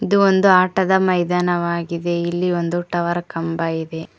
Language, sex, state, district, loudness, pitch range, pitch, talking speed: Kannada, female, Karnataka, Koppal, -18 LUFS, 170-185 Hz, 175 Hz, 130 wpm